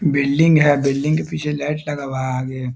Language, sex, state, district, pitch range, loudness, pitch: Hindi, male, Bihar, Saharsa, 135-150 Hz, -18 LUFS, 145 Hz